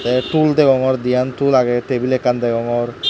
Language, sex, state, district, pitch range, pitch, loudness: Chakma, male, Tripura, Dhalai, 120-130 Hz, 125 Hz, -16 LUFS